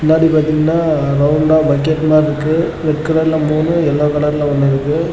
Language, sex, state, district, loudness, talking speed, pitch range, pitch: Tamil, male, Tamil Nadu, Namakkal, -14 LUFS, 150 wpm, 150-160 Hz, 155 Hz